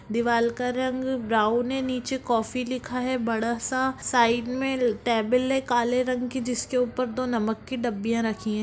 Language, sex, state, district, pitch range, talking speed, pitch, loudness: Hindi, female, Bihar, Lakhisarai, 230-255 Hz, 180 wpm, 250 Hz, -26 LUFS